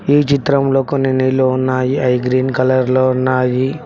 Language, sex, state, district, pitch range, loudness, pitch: Telugu, male, Telangana, Mahabubabad, 130-135 Hz, -15 LUFS, 130 Hz